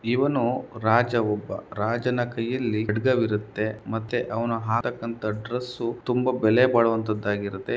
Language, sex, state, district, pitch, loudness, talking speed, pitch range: Kannada, male, Karnataka, Chamarajanagar, 115 Hz, -25 LUFS, 100 wpm, 110-125 Hz